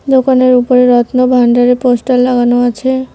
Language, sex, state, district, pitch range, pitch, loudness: Bengali, female, West Bengal, Cooch Behar, 245-255 Hz, 250 Hz, -10 LUFS